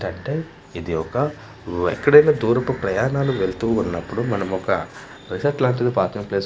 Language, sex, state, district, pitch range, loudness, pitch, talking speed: Telugu, male, Andhra Pradesh, Manyam, 95-135 Hz, -21 LUFS, 115 Hz, 130 wpm